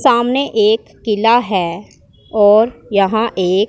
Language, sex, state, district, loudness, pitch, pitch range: Hindi, female, Punjab, Pathankot, -14 LUFS, 215 Hz, 200-230 Hz